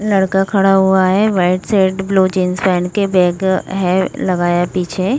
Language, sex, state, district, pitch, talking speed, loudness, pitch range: Hindi, female, Uttar Pradesh, Muzaffarnagar, 190 Hz, 160 wpm, -14 LUFS, 180-195 Hz